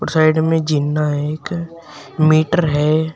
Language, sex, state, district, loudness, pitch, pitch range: Hindi, male, Uttar Pradesh, Shamli, -17 LUFS, 155 Hz, 150-165 Hz